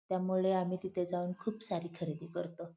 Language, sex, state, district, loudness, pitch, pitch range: Marathi, female, Maharashtra, Pune, -36 LUFS, 180 Hz, 170-185 Hz